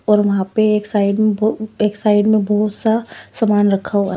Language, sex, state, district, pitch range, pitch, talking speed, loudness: Hindi, female, Punjab, Pathankot, 205-215 Hz, 210 Hz, 215 wpm, -16 LUFS